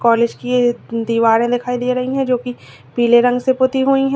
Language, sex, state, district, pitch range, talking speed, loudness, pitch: Hindi, female, Uttar Pradesh, Lalitpur, 235-255 Hz, 230 wpm, -16 LUFS, 245 Hz